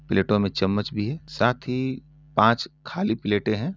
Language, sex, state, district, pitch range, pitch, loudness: Hindi, male, Uttar Pradesh, Etah, 105-140 Hz, 115 Hz, -24 LUFS